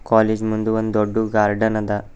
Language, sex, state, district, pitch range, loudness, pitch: Kannada, male, Karnataka, Bidar, 105-110 Hz, -19 LUFS, 110 Hz